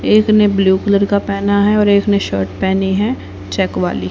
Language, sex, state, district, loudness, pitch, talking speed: Hindi, female, Haryana, Rohtak, -14 LUFS, 200 Hz, 220 wpm